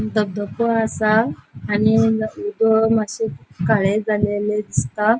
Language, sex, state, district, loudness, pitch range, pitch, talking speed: Konkani, female, Goa, North and South Goa, -19 LUFS, 205-225 Hz, 215 Hz, 90 wpm